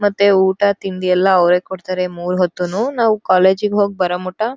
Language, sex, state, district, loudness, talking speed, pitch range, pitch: Kannada, female, Karnataka, Dharwad, -16 LUFS, 170 wpm, 180-200 Hz, 190 Hz